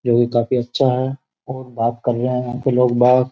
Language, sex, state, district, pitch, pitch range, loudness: Hindi, male, Uttar Pradesh, Jyotiba Phule Nagar, 125 Hz, 120-130 Hz, -18 LUFS